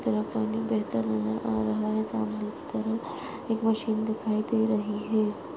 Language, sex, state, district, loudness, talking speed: Hindi, female, Goa, North and South Goa, -29 LUFS, 185 wpm